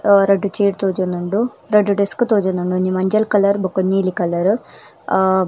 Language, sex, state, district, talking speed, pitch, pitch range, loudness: Tulu, female, Karnataka, Dakshina Kannada, 165 wpm, 195 Hz, 185-205 Hz, -17 LUFS